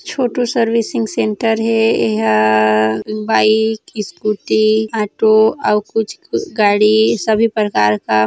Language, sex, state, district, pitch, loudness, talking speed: Chhattisgarhi, female, Chhattisgarh, Sarguja, 215 Hz, -15 LUFS, 110 wpm